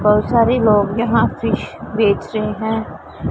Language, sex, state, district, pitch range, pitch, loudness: Hindi, female, Punjab, Pathankot, 205-225 Hz, 215 Hz, -17 LUFS